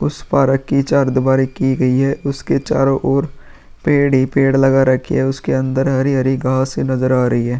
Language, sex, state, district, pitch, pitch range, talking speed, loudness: Hindi, male, Uttar Pradesh, Muzaffarnagar, 135 Hz, 130-135 Hz, 195 wpm, -16 LUFS